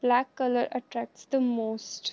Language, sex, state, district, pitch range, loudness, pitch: Hindi, female, Uttar Pradesh, Jalaun, 235-255 Hz, -29 LUFS, 245 Hz